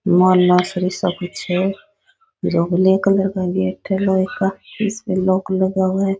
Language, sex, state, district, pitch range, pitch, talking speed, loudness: Rajasthani, female, Rajasthan, Nagaur, 180-195 Hz, 190 Hz, 165 wpm, -18 LUFS